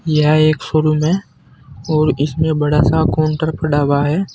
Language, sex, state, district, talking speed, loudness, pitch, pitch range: Hindi, male, Uttar Pradesh, Saharanpur, 165 wpm, -15 LUFS, 155 Hz, 145-155 Hz